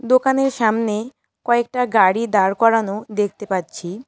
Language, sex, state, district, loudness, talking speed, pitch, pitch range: Bengali, female, West Bengal, Cooch Behar, -18 LUFS, 115 wpm, 225 Hz, 205-240 Hz